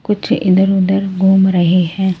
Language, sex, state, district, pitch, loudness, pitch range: Hindi, male, Delhi, New Delhi, 190 Hz, -13 LUFS, 185-195 Hz